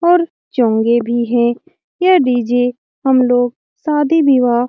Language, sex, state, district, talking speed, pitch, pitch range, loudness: Hindi, female, Bihar, Lakhisarai, 130 wpm, 245 Hz, 240-295 Hz, -14 LUFS